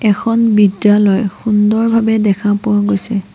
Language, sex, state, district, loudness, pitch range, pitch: Assamese, female, Assam, Sonitpur, -13 LUFS, 205-220 Hz, 210 Hz